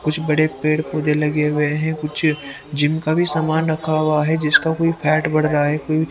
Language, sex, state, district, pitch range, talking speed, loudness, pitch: Hindi, male, Haryana, Rohtak, 150-160 Hz, 205 wpm, -18 LUFS, 155 Hz